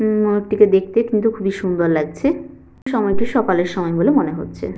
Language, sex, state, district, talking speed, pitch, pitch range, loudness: Bengali, female, West Bengal, Malda, 165 wpm, 205 Hz, 185-225 Hz, -18 LUFS